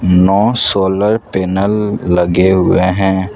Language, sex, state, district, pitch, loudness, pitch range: Hindi, male, Gujarat, Valsad, 95 Hz, -12 LUFS, 90-105 Hz